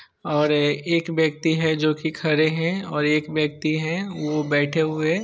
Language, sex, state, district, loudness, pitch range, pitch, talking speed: Hindi, male, Bihar, Sitamarhi, -22 LUFS, 150-160 Hz, 155 Hz, 170 wpm